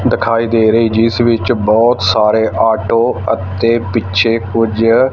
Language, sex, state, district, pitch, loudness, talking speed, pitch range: Punjabi, male, Punjab, Fazilka, 115 Hz, -12 LUFS, 130 wpm, 110-115 Hz